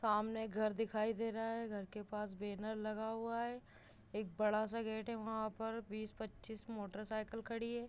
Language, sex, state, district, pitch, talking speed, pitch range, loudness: Hindi, female, Uttar Pradesh, Gorakhpur, 220 Hz, 190 wpm, 215-225 Hz, -42 LUFS